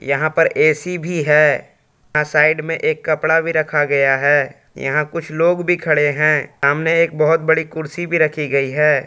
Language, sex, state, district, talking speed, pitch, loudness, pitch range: Hindi, male, Jharkhand, Palamu, 190 wpm, 155 Hz, -16 LUFS, 150-165 Hz